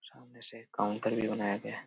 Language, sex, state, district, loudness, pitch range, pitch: Hindi, male, Bihar, Jamui, -34 LUFS, 105-115 Hz, 110 Hz